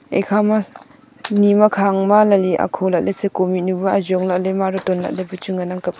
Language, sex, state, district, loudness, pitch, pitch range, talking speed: Wancho, female, Arunachal Pradesh, Longding, -17 LUFS, 195 Hz, 185-205 Hz, 210 wpm